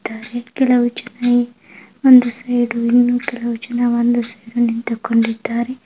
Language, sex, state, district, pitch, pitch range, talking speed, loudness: Kannada, female, Karnataka, Gulbarga, 240 Hz, 230-245 Hz, 70 wpm, -16 LUFS